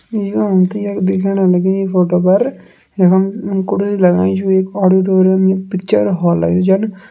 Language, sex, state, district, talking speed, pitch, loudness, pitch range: Kumaoni, male, Uttarakhand, Tehri Garhwal, 150 wpm, 190 Hz, -14 LUFS, 185-195 Hz